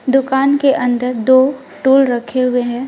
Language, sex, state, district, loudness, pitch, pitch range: Hindi, female, West Bengal, Alipurduar, -14 LUFS, 260 Hz, 245-270 Hz